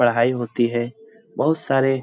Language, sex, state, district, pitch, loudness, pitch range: Hindi, male, Bihar, Jamui, 125 Hz, -21 LUFS, 120-135 Hz